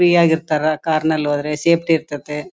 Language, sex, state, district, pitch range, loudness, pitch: Kannada, female, Karnataka, Bellary, 150-165 Hz, -18 LUFS, 155 Hz